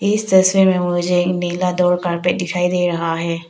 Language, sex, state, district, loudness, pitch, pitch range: Hindi, female, Arunachal Pradesh, Papum Pare, -17 LUFS, 180 Hz, 175-180 Hz